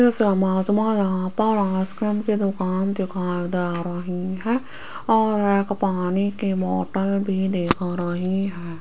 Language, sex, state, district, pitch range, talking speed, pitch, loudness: Hindi, female, Rajasthan, Jaipur, 180-205 Hz, 145 wpm, 190 Hz, -23 LUFS